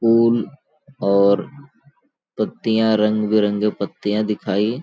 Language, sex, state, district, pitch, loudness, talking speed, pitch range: Hindi, male, Chhattisgarh, Balrampur, 105 Hz, -19 LUFS, 100 wpm, 105-115 Hz